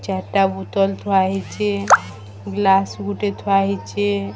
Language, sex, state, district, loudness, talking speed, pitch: Odia, female, Odisha, Sambalpur, -19 LUFS, 110 wpm, 195 Hz